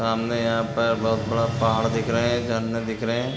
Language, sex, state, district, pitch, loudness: Hindi, male, Chhattisgarh, Raigarh, 115 Hz, -23 LUFS